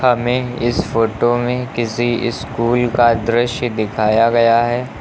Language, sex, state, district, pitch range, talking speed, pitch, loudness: Hindi, male, Uttar Pradesh, Lucknow, 115-120 Hz, 130 wpm, 120 Hz, -16 LUFS